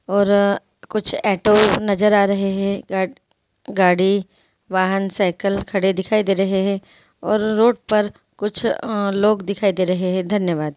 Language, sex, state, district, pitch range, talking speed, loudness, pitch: Hindi, female, Bihar, Gopalganj, 190-210 Hz, 135 wpm, -19 LUFS, 200 Hz